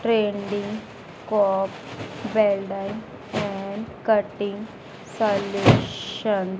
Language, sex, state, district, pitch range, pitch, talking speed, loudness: Hindi, female, Madhya Pradesh, Dhar, 195-215 Hz, 205 Hz, 65 wpm, -24 LUFS